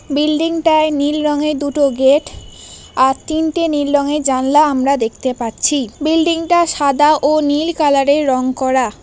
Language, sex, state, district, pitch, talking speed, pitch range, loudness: Bengali, female, West Bengal, Paschim Medinipur, 290 Hz, 155 wpm, 270-310 Hz, -15 LUFS